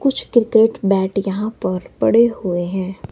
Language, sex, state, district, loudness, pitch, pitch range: Hindi, male, Himachal Pradesh, Shimla, -18 LUFS, 195 Hz, 190-225 Hz